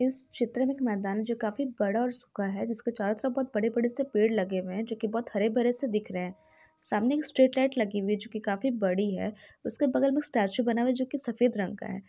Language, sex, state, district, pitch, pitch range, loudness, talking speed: Hindi, female, Bihar, Jahanabad, 225 Hz, 205-255 Hz, -29 LUFS, 270 wpm